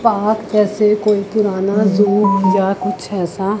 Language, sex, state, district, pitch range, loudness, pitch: Hindi, female, Chandigarh, Chandigarh, 195-210 Hz, -15 LUFS, 205 Hz